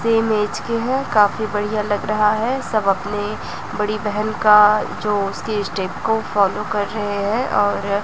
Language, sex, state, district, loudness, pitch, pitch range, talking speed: Hindi, female, Chhattisgarh, Raipur, -19 LUFS, 210 Hz, 205-215 Hz, 170 wpm